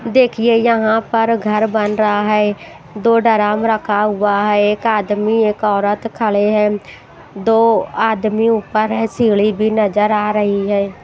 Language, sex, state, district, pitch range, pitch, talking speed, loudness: Hindi, female, Himachal Pradesh, Shimla, 210-225 Hz, 215 Hz, 150 wpm, -15 LUFS